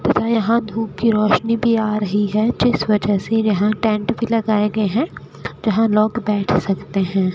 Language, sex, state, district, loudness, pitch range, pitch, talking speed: Hindi, female, Rajasthan, Bikaner, -18 LUFS, 205-225 Hz, 215 Hz, 190 wpm